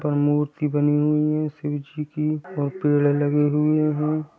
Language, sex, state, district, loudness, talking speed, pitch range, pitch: Hindi, male, Uttar Pradesh, Gorakhpur, -22 LUFS, 180 wpm, 145-150 Hz, 150 Hz